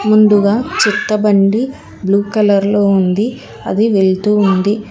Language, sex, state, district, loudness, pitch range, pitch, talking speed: Telugu, female, Telangana, Hyderabad, -13 LUFS, 200-215 Hz, 205 Hz, 120 wpm